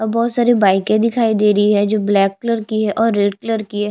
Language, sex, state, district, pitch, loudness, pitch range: Hindi, female, Chhattisgarh, Jashpur, 215 Hz, -16 LUFS, 205-230 Hz